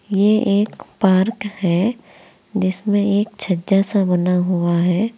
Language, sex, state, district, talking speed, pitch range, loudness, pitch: Hindi, female, Uttar Pradesh, Saharanpur, 125 wpm, 180-210 Hz, -18 LUFS, 200 Hz